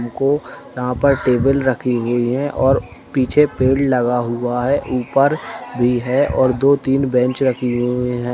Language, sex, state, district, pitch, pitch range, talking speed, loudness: Hindi, male, Chhattisgarh, Bastar, 125 Hz, 125-135 Hz, 165 wpm, -17 LUFS